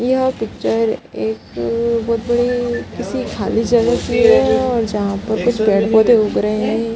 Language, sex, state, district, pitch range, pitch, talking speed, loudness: Hindi, female, Bihar, Gaya, 210-240 Hz, 225 Hz, 165 wpm, -16 LUFS